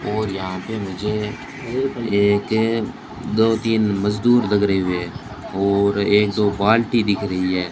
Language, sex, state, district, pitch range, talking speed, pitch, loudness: Hindi, male, Rajasthan, Bikaner, 100-110 Hz, 150 wpm, 105 Hz, -20 LUFS